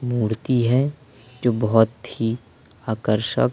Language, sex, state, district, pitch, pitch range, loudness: Hindi, male, Madhya Pradesh, Umaria, 115 Hz, 110-125 Hz, -22 LUFS